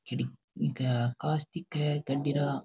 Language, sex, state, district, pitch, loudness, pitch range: Marwari, male, Rajasthan, Nagaur, 145 Hz, -32 LUFS, 130-150 Hz